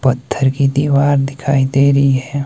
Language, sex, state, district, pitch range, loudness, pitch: Hindi, male, Himachal Pradesh, Shimla, 135-140 Hz, -14 LUFS, 140 Hz